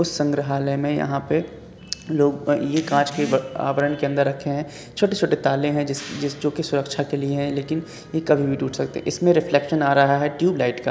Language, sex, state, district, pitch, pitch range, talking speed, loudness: Hindi, male, Uttar Pradesh, Gorakhpur, 145 Hz, 140-150 Hz, 200 wpm, -22 LUFS